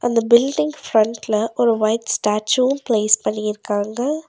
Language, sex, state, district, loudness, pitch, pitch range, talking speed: Tamil, female, Tamil Nadu, Nilgiris, -18 LUFS, 225 Hz, 215-240 Hz, 110 wpm